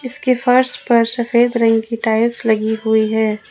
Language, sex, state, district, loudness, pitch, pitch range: Hindi, female, Jharkhand, Ranchi, -16 LUFS, 230 Hz, 220-245 Hz